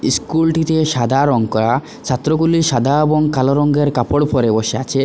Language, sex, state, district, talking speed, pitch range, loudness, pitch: Bengali, male, Assam, Hailakandi, 165 wpm, 125-155 Hz, -15 LUFS, 145 Hz